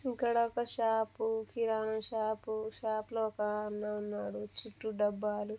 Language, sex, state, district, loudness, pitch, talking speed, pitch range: Telugu, female, Telangana, Nalgonda, -35 LUFS, 220 Hz, 130 wpm, 210-225 Hz